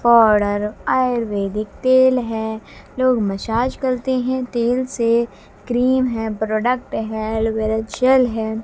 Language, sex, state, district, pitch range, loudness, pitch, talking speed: Hindi, female, Haryana, Jhajjar, 220-255 Hz, -19 LUFS, 235 Hz, 120 wpm